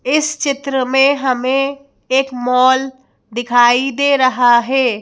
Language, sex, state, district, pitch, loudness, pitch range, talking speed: Hindi, female, Madhya Pradesh, Bhopal, 260 Hz, -14 LUFS, 250-275 Hz, 120 wpm